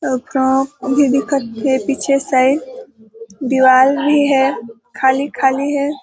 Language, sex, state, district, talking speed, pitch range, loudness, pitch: Hindi, female, Chhattisgarh, Balrampur, 120 wpm, 260-280 Hz, -15 LUFS, 270 Hz